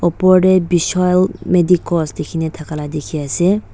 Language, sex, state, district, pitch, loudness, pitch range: Nagamese, female, Nagaland, Dimapur, 175 Hz, -15 LUFS, 155-185 Hz